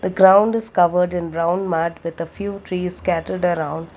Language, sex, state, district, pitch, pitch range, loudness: English, female, Karnataka, Bangalore, 180 Hz, 170-190 Hz, -19 LUFS